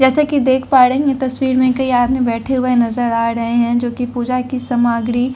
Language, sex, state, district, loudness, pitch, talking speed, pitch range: Hindi, female, Delhi, New Delhi, -15 LUFS, 250 Hz, 235 wpm, 240-260 Hz